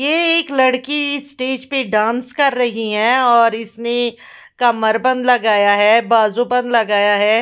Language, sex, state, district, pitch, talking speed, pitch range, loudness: Hindi, female, Punjab, Fazilka, 240 Hz, 160 wpm, 220-260 Hz, -15 LUFS